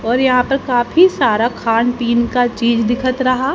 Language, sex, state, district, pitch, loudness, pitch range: Hindi, female, Haryana, Jhajjar, 245 Hz, -15 LUFS, 235-260 Hz